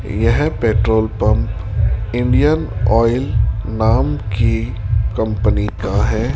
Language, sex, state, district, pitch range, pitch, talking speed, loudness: Hindi, male, Rajasthan, Jaipur, 105-115 Hz, 110 Hz, 95 wpm, -17 LUFS